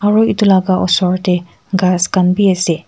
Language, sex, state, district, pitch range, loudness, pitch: Nagamese, female, Nagaland, Kohima, 180-195 Hz, -13 LUFS, 185 Hz